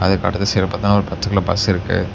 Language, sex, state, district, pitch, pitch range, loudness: Tamil, male, Tamil Nadu, Namakkal, 100 Hz, 95-100 Hz, -18 LUFS